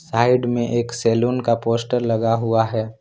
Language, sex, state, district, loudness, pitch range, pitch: Hindi, male, Jharkhand, Ranchi, -20 LUFS, 115-120 Hz, 115 Hz